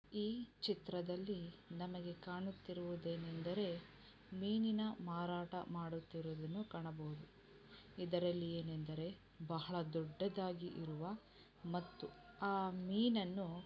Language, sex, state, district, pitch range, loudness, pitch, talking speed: Kannada, female, Karnataka, Dharwad, 170-195 Hz, -44 LUFS, 180 Hz, 70 wpm